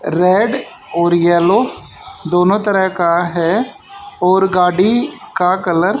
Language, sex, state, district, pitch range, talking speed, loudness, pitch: Hindi, male, Haryana, Charkhi Dadri, 175-205 Hz, 120 wpm, -14 LUFS, 185 Hz